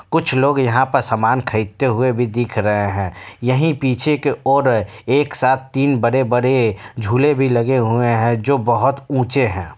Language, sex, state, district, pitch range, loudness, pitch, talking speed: Hindi, male, Bihar, Kishanganj, 115-135 Hz, -17 LUFS, 130 Hz, 170 wpm